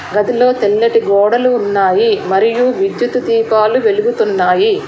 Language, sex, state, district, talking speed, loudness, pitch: Telugu, female, Telangana, Hyderabad, 100 wpm, -13 LUFS, 245 Hz